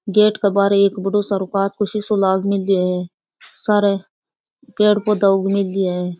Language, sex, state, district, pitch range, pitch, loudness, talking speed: Rajasthani, female, Rajasthan, Churu, 190-205 Hz, 200 Hz, -18 LUFS, 115 wpm